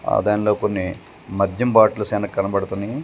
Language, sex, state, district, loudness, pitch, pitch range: Telugu, male, Telangana, Komaram Bheem, -20 LUFS, 100 Hz, 100-105 Hz